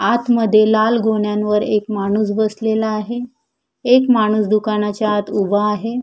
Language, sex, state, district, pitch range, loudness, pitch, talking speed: Marathi, female, Maharashtra, Chandrapur, 210-230 Hz, -17 LUFS, 215 Hz, 130 wpm